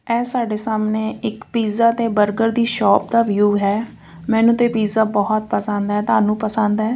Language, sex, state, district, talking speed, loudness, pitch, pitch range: Punjabi, female, Punjab, Fazilka, 180 wpm, -18 LUFS, 220 Hz, 210-230 Hz